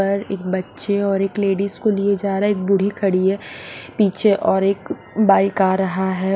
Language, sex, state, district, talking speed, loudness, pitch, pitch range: Hindi, male, Punjab, Fazilka, 190 wpm, -19 LUFS, 195 Hz, 190-200 Hz